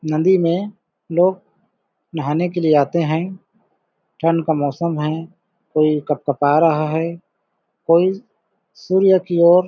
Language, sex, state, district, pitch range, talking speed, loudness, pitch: Hindi, male, Chhattisgarh, Balrampur, 155-190 Hz, 130 wpm, -18 LUFS, 170 Hz